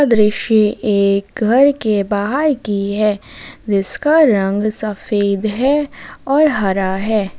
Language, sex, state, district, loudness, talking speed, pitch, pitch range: Hindi, female, Jharkhand, Ranchi, -15 LUFS, 115 wpm, 215 Hz, 200-265 Hz